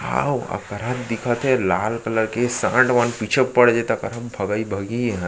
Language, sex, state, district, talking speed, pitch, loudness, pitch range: Chhattisgarhi, male, Chhattisgarh, Sarguja, 205 wpm, 115 Hz, -21 LUFS, 105-120 Hz